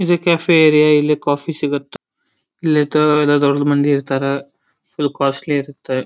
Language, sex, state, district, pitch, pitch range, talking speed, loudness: Kannada, male, Karnataka, Dharwad, 145 Hz, 140-150 Hz, 140 wpm, -16 LUFS